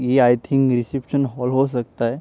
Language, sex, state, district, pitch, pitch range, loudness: Hindi, male, Maharashtra, Chandrapur, 125 Hz, 120-135 Hz, -20 LUFS